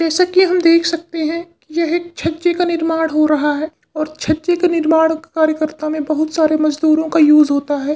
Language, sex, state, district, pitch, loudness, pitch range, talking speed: Hindi, male, Uttar Pradesh, Varanasi, 320 Hz, -15 LUFS, 310-335 Hz, 210 wpm